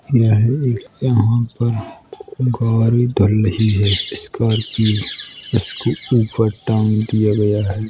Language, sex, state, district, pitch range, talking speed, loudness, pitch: Hindi, male, Uttar Pradesh, Hamirpur, 110-120 Hz, 105 wpm, -17 LUFS, 110 Hz